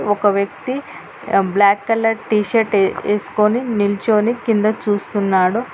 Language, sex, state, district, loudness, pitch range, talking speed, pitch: Telugu, female, Telangana, Hyderabad, -17 LUFS, 200-225 Hz, 95 wpm, 210 Hz